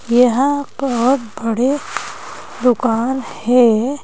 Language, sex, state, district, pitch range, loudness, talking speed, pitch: Hindi, female, Madhya Pradesh, Bhopal, 235-270 Hz, -16 LUFS, 75 wpm, 250 Hz